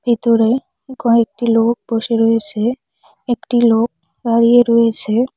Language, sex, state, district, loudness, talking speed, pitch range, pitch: Bengali, female, West Bengal, Cooch Behar, -15 LUFS, 100 wpm, 225-240 Hz, 235 Hz